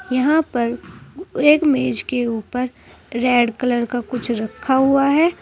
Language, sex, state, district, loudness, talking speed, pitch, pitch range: Hindi, female, Uttar Pradesh, Saharanpur, -18 LUFS, 145 wpm, 250 Hz, 235-280 Hz